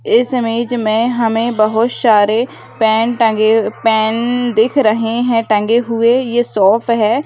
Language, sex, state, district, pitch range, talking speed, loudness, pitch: Hindi, female, Bihar, Begusarai, 220-240 Hz, 140 wpm, -14 LUFS, 230 Hz